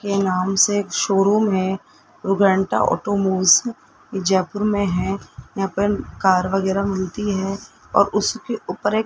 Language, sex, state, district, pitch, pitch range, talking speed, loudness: Hindi, male, Rajasthan, Jaipur, 195 Hz, 190-205 Hz, 130 wpm, -20 LUFS